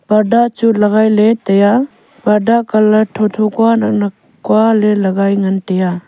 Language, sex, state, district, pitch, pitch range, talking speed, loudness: Wancho, female, Arunachal Pradesh, Longding, 215 Hz, 200-225 Hz, 170 wpm, -12 LUFS